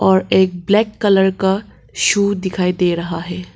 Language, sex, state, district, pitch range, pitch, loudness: Hindi, female, Arunachal Pradesh, Papum Pare, 180-200 Hz, 190 Hz, -16 LUFS